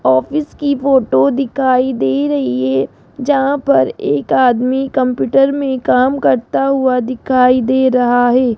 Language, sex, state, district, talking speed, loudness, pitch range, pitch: Hindi, female, Rajasthan, Jaipur, 140 wpm, -14 LUFS, 245-270 Hz, 255 Hz